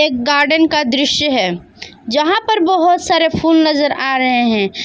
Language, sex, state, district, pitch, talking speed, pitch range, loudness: Hindi, female, Jharkhand, Palamu, 295 Hz, 175 wpm, 260-325 Hz, -13 LUFS